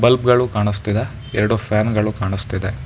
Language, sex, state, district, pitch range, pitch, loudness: Kannada, male, Karnataka, Bangalore, 105-120 Hz, 105 Hz, -19 LUFS